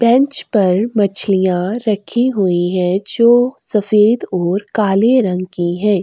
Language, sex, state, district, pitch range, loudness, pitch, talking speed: Hindi, female, Goa, North and South Goa, 185-230 Hz, -14 LUFS, 205 Hz, 130 wpm